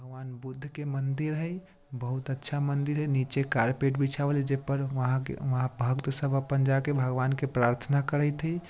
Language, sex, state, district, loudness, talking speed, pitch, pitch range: Bajjika, male, Bihar, Vaishali, -27 LUFS, 170 wpm, 135 Hz, 130-145 Hz